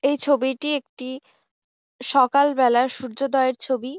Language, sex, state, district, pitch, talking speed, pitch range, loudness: Bengali, female, West Bengal, Jhargram, 265 Hz, 105 wpm, 255-280 Hz, -21 LUFS